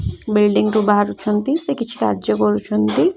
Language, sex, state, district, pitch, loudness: Odia, female, Odisha, Khordha, 210 Hz, -18 LUFS